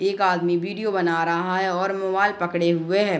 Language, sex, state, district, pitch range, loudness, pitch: Hindi, female, Bihar, Gopalganj, 175-195 Hz, -22 LUFS, 185 Hz